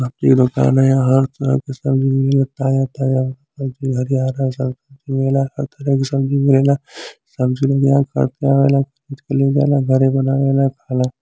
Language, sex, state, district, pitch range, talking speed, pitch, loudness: Bhojpuri, male, Uttar Pradesh, Gorakhpur, 130-140 Hz, 110 wpm, 135 Hz, -17 LUFS